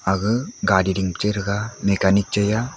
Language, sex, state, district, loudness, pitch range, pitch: Wancho, male, Arunachal Pradesh, Longding, -21 LUFS, 95-105 Hz, 100 Hz